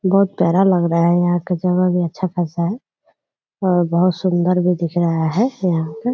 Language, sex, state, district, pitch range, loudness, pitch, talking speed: Hindi, female, Bihar, Purnia, 170-185 Hz, -17 LUFS, 180 Hz, 215 wpm